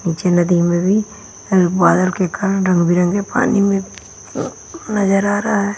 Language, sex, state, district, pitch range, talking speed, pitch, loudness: Hindi, female, Bihar, Patna, 180-205 Hz, 175 wpm, 195 Hz, -16 LUFS